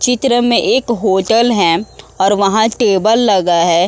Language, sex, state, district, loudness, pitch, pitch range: Hindi, female, Uttar Pradesh, Muzaffarnagar, -13 LUFS, 215 Hz, 190-235 Hz